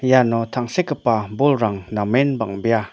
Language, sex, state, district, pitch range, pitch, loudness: Garo, male, Meghalaya, North Garo Hills, 110-130 Hz, 115 Hz, -20 LUFS